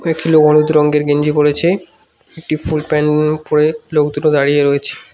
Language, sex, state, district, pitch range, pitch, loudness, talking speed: Bengali, male, West Bengal, Cooch Behar, 150-155 Hz, 150 Hz, -14 LUFS, 165 wpm